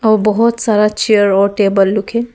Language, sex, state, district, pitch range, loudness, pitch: Hindi, female, Arunachal Pradesh, Papum Pare, 200-225 Hz, -13 LUFS, 210 Hz